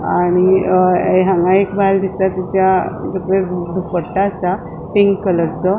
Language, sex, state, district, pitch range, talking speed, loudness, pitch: Konkani, female, Goa, North and South Goa, 180-195 Hz, 135 wpm, -15 LUFS, 185 Hz